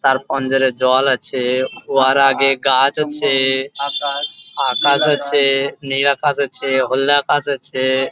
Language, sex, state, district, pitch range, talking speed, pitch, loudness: Bengali, male, West Bengal, Jhargram, 130-140 Hz, 125 wpm, 135 Hz, -16 LUFS